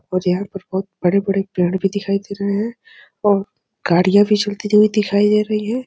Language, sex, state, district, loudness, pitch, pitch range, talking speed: Hindi, male, Uttar Pradesh, Deoria, -18 LUFS, 200 Hz, 195-210 Hz, 215 wpm